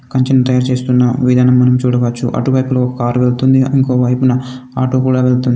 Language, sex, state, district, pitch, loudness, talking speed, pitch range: Telugu, male, Telangana, Komaram Bheem, 125 Hz, -13 LUFS, 160 wpm, 125-130 Hz